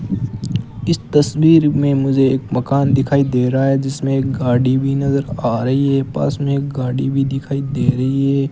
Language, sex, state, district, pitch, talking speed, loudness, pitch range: Hindi, male, Rajasthan, Bikaner, 135 Hz, 185 wpm, -17 LUFS, 135-140 Hz